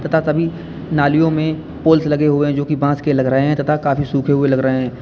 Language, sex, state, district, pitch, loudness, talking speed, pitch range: Hindi, male, Uttar Pradesh, Lalitpur, 145 Hz, -16 LUFS, 265 wpm, 140-155 Hz